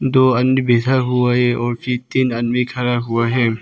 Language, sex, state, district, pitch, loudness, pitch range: Hindi, male, Arunachal Pradesh, Papum Pare, 125 Hz, -17 LUFS, 120-130 Hz